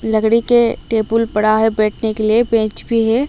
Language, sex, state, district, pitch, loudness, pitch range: Hindi, female, Odisha, Malkangiri, 225 Hz, -15 LUFS, 215-230 Hz